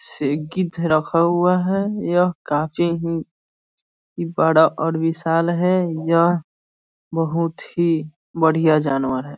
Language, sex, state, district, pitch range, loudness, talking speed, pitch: Hindi, male, Bihar, East Champaran, 155-170 Hz, -20 LUFS, 115 wpm, 165 Hz